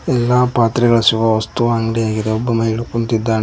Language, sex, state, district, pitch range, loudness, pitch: Kannada, male, Karnataka, Koppal, 110-120 Hz, -16 LUFS, 115 Hz